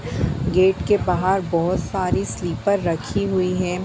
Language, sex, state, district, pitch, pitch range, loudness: Bhojpuri, female, Bihar, Saran, 180 Hz, 170-190 Hz, -21 LUFS